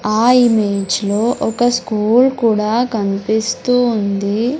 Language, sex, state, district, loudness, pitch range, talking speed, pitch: Telugu, male, Andhra Pradesh, Sri Satya Sai, -15 LUFS, 210-245 Hz, 105 wpm, 220 Hz